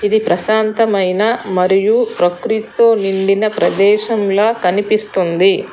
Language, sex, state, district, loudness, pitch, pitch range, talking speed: Telugu, female, Telangana, Hyderabad, -14 LUFS, 210 Hz, 190-220 Hz, 75 wpm